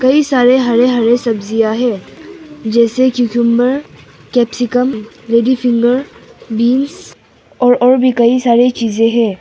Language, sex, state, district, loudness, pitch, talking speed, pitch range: Hindi, female, Arunachal Pradesh, Papum Pare, -13 LUFS, 245 Hz, 120 wpm, 235-255 Hz